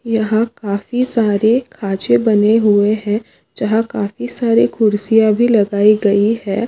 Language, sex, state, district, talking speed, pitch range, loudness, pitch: Hindi, female, Maharashtra, Aurangabad, 135 wpm, 205-225 Hz, -15 LUFS, 215 Hz